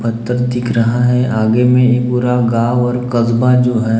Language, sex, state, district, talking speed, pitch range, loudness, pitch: Hindi, male, Maharashtra, Gondia, 180 wpm, 115-125 Hz, -13 LUFS, 120 Hz